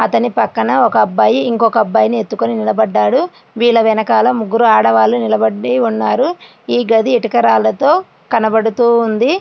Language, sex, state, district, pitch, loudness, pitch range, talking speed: Telugu, female, Andhra Pradesh, Srikakulam, 225 Hz, -13 LUFS, 215-240 Hz, 115 wpm